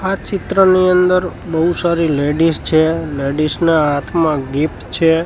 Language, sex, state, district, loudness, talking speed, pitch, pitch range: Gujarati, male, Gujarat, Gandhinagar, -15 LUFS, 135 wpm, 165 Hz, 155-180 Hz